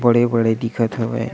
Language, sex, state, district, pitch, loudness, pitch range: Chhattisgarhi, male, Chhattisgarh, Sukma, 115 Hz, -19 LUFS, 115-120 Hz